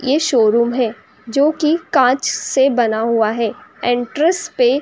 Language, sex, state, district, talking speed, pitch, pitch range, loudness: Hindi, female, Uttar Pradesh, Jyotiba Phule Nagar, 160 wpm, 250 Hz, 235-290 Hz, -16 LUFS